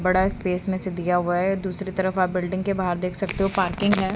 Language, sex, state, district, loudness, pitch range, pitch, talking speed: Hindi, female, Haryana, Charkhi Dadri, -24 LUFS, 180-195 Hz, 190 Hz, 260 wpm